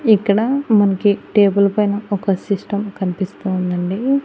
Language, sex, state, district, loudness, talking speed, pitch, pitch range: Telugu, female, Andhra Pradesh, Annamaya, -17 LUFS, 115 wpm, 200 Hz, 195-210 Hz